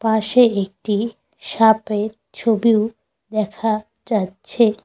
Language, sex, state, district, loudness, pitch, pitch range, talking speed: Bengali, female, West Bengal, Cooch Behar, -19 LUFS, 220 Hz, 210-225 Hz, 75 wpm